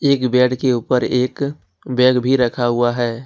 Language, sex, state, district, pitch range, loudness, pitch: Hindi, male, Jharkhand, Ranchi, 120-130 Hz, -17 LUFS, 125 Hz